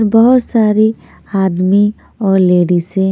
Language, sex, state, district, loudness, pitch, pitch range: Hindi, female, Punjab, Kapurthala, -12 LUFS, 200 Hz, 190-220 Hz